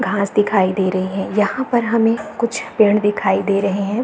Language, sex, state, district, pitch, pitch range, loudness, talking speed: Hindi, female, Chhattisgarh, Balrampur, 210 Hz, 195-230 Hz, -17 LUFS, 210 wpm